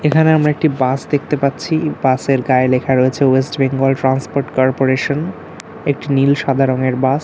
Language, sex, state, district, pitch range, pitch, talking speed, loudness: Bengali, male, West Bengal, North 24 Parganas, 130-145 Hz, 135 Hz, 175 wpm, -15 LUFS